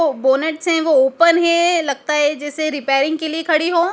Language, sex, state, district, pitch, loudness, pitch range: Hindi, female, Madhya Pradesh, Dhar, 310 Hz, -16 LUFS, 285-335 Hz